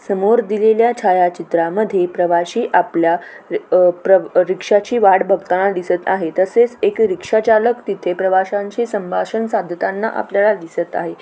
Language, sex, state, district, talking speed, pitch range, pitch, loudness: Marathi, female, Maharashtra, Aurangabad, 130 wpm, 180-225 Hz, 200 Hz, -16 LUFS